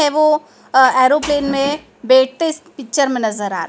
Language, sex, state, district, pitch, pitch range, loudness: Hindi, female, Madhya Pradesh, Dhar, 275 Hz, 255-300 Hz, -15 LUFS